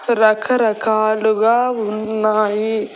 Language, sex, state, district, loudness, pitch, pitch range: Telugu, female, Andhra Pradesh, Annamaya, -17 LUFS, 220 Hz, 215-225 Hz